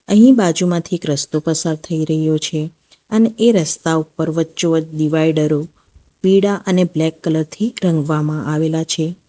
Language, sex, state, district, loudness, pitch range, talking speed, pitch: Gujarati, female, Gujarat, Valsad, -16 LUFS, 155-180 Hz, 140 wpm, 160 Hz